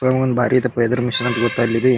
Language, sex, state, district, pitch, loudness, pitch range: Kannada, male, Karnataka, Bijapur, 125 Hz, -18 LUFS, 120-130 Hz